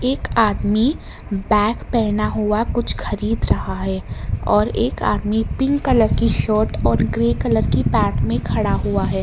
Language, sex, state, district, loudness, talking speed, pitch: Hindi, male, Karnataka, Bangalore, -19 LUFS, 165 wpm, 210 Hz